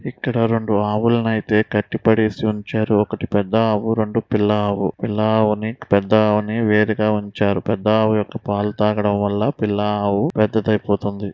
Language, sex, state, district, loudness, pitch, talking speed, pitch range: Telugu, male, Andhra Pradesh, Visakhapatnam, -19 LUFS, 105 Hz, 140 wpm, 105-110 Hz